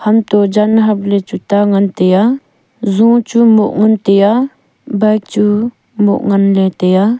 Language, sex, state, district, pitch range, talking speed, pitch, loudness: Wancho, female, Arunachal Pradesh, Longding, 200-225 Hz, 160 wpm, 210 Hz, -12 LUFS